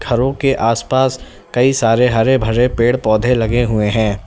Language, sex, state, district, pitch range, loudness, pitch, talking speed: Hindi, male, Uttar Pradesh, Lalitpur, 115-130 Hz, -15 LUFS, 120 Hz, 170 wpm